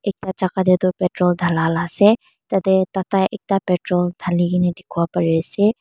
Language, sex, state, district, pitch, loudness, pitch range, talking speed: Nagamese, female, Mizoram, Aizawl, 185 Hz, -19 LUFS, 175-195 Hz, 185 wpm